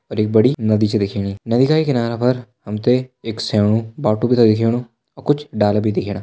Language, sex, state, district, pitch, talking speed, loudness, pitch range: Hindi, male, Uttarakhand, Tehri Garhwal, 115 Hz, 250 wpm, -18 LUFS, 105-125 Hz